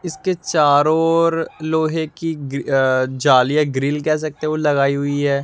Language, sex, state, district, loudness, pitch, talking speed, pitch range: Hindi, male, Delhi, New Delhi, -18 LUFS, 150 Hz, 155 wpm, 140-160 Hz